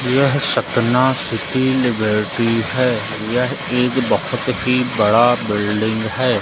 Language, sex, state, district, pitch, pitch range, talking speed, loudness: Hindi, male, Madhya Pradesh, Umaria, 125 Hz, 110-130 Hz, 110 wpm, -17 LUFS